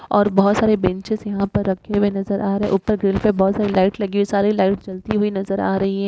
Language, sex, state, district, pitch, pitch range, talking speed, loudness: Hindi, female, Uttar Pradesh, Muzaffarnagar, 200 Hz, 195-205 Hz, 285 wpm, -19 LUFS